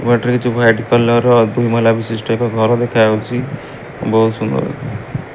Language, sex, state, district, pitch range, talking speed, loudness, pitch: Odia, male, Odisha, Malkangiri, 110-120 Hz, 155 wpm, -14 LUFS, 115 Hz